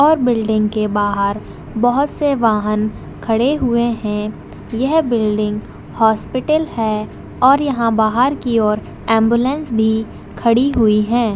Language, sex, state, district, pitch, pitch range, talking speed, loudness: Hindi, female, Chhattisgarh, Raigarh, 225 Hz, 215-255 Hz, 125 wpm, -16 LUFS